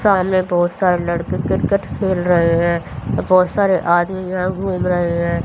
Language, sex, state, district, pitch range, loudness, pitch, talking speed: Hindi, female, Haryana, Rohtak, 175-190 Hz, -17 LUFS, 180 Hz, 165 wpm